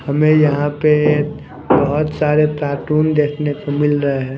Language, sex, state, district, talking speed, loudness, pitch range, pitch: Hindi, male, Punjab, Kapurthala, 150 wpm, -16 LUFS, 145-150 Hz, 150 Hz